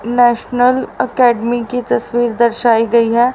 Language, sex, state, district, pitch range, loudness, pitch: Hindi, female, Haryana, Rohtak, 235-245 Hz, -14 LUFS, 240 Hz